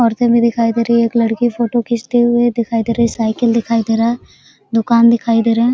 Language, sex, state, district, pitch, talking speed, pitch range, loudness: Hindi, female, Bihar, Araria, 235 Hz, 260 wpm, 230-235 Hz, -14 LUFS